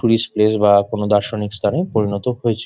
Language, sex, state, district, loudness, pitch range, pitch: Bengali, male, West Bengal, Jhargram, -17 LUFS, 105-115 Hz, 110 Hz